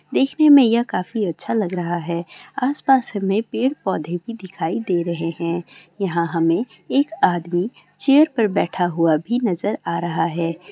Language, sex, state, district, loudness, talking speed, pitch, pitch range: Hindi, female, Bihar, Gopalganj, -20 LUFS, 160 wpm, 190 Hz, 170-240 Hz